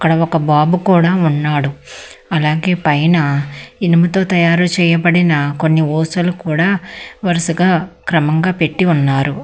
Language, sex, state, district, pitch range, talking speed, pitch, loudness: Telugu, female, Telangana, Hyderabad, 155-175 Hz, 110 wpm, 165 Hz, -14 LUFS